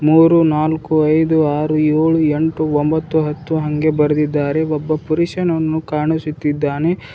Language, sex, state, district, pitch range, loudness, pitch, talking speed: Kannada, male, Karnataka, Bidar, 150-160 Hz, -16 LUFS, 155 Hz, 110 wpm